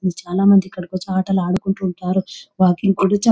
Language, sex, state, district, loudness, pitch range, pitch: Telugu, female, Telangana, Nalgonda, -18 LUFS, 185-195 Hz, 190 Hz